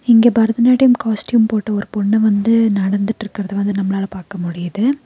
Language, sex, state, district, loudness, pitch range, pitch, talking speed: Tamil, female, Tamil Nadu, Nilgiris, -16 LUFS, 200-230 Hz, 215 Hz, 140 wpm